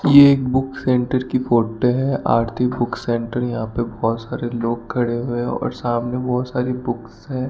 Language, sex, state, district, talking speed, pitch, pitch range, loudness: Hindi, male, Rajasthan, Bikaner, 185 wpm, 120 Hz, 120-130 Hz, -20 LUFS